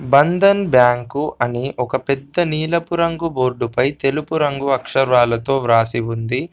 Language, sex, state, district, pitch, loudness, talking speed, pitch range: Telugu, male, Telangana, Komaram Bheem, 135 Hz, -17 LUFS, 130 wpm, 125-155 Hz